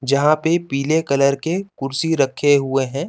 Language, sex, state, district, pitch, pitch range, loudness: Hindi, male, Chandigarh, Chandigarh, 140 Hz, 135-160 Hz, -18 LUFS